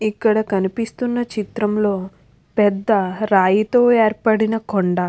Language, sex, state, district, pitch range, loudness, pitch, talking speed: Telugu, female, Andhra Pradesh, Krishna, 195-225 Hz, -18 LUFS, 215 Hz, 80 wpm